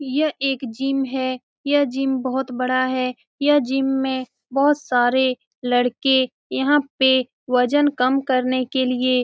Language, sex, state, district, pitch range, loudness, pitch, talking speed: Hindi, female, Bihar, Saran, 255-275 Hz, -20 LUFS, 260 Hz, 155 wpm